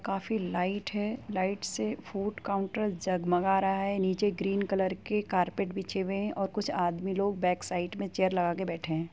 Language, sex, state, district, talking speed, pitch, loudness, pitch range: Hindi, female, Uttar Pradesh, Jyotiba Phule Nagar, 195 wpm, 195 Hz, -31 LUFS, 180-200 Hz